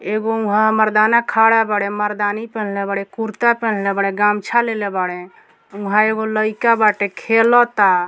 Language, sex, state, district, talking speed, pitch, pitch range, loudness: Bhojpuri, female, Bihar, Muzaffarpur, 140 wpm, 215 Hz, 200-225 Hz, -17 LUFS